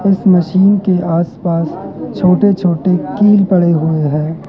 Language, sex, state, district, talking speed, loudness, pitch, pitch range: Hindi, male, Madhya Pradesh, Katni, 135 wpm, -12 LUFS, 180 Hz, 165-195 Hz